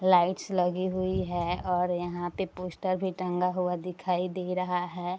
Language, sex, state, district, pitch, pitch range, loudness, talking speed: Hindi, female, Bihar, Darbhanga, 180 Hz, 180-185 Hz, -30 LUFS, 175 wpm